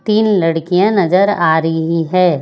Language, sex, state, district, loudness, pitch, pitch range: Hindi, female, Chhattisgarh, Raipur, -13 LUFS, 180 Hz, 165-200 Hz